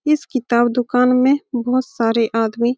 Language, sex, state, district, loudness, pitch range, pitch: Hindi, female, Bihar, Saran, -17 LUFS, 235-260 Hz, 245 Hz